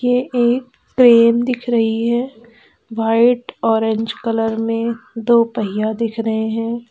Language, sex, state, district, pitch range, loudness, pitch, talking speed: Hindi, female, Uttar Pradesh, Lalitpur, 225-240 Hz, -17 LUFS, 230 Hz, 130 wpm